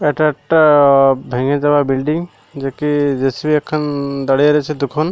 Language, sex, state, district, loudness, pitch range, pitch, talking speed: Bengali, male, Odisha, Malkangiri, -15 LUFS, 135-150 Hz, 145 Hz, 140 wpm